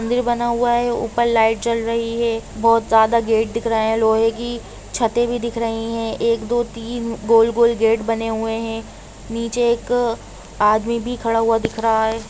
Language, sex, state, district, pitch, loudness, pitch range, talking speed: Hindi, female, Jharkhand, Jamtara, 230 Hz, -19 LUFS, 225-235 Hz, 195 wpm